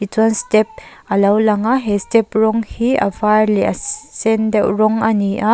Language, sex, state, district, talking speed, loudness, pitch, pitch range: Mizo, female, Mizoram, Aizawl, 195 wpm, -16 LUFS, 215 Hz, 210-225 Hz